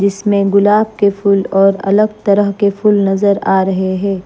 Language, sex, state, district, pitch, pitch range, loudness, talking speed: Hindi, female, Maharashtra, Mumbai Suburban, 200 Hz, 195-205 Hz, -13 LUFS, 185 wpm